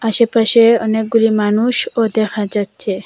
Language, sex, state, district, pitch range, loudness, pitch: Bengali, female, Assam, Hailakandi, 210-230 Hz, -14 LUFS, 220 Hz